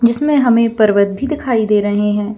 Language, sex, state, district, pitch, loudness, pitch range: Hindi, female, Chhattisgarh, Bilaspur, 220 Hz, -14 LUFS, 210-245 Hz